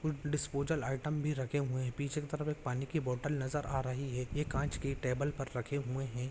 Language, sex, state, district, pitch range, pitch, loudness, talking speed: Hindi, male, Jharkhand, Sahebganj, 130-150 Hz, 140 Hz, -37 LUFS, 240 wpm